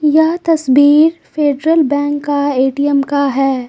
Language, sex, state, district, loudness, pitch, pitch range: Hindi, female, Bihar, Patna, -13 LUFS, 285 Hz, 280-310 Hz